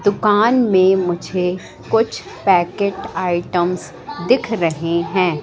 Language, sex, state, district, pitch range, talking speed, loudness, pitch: Hindi, female, Madhya Pradesh, Katni, 175-205 Hz, 100 wpm, -17 LUFS, 185 Hz